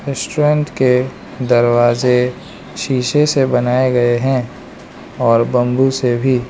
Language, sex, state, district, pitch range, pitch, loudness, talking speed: Hindi, male, Arunachal Pradesh, Lower Dibang Valley, 120-130 Hz, 125 Hz, -15 LUFS, 110 wpm